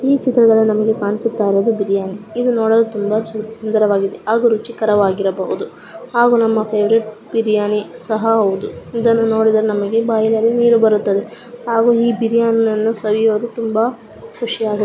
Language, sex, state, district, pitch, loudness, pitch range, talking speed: Kannada, female, Karnataka, Gulbarga, 220 Hz, -16 LUFS, 210-230 Hz, 135 wpm